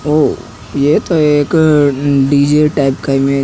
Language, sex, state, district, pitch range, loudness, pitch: Hindi, male, Haryana, Rohtak, 135-150 Hz, -12 LUFS, 145 Hz